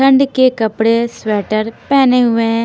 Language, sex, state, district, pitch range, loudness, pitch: Hindi, female, Bihar, Patna, 220-260 Hz, -13 LUFS, 230 Hz